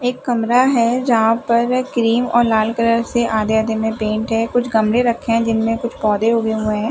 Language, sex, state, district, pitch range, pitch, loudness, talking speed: Hindi, female, Bihar, Gopalganj, 220-240 Hz, 230 Hz, -17 LUFS, 215 wpm